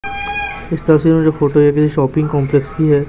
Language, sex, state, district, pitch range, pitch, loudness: Hindi, male, Chhattisgarh, Raipur, 145-165 Hz, 155 Hz, -14 LUFS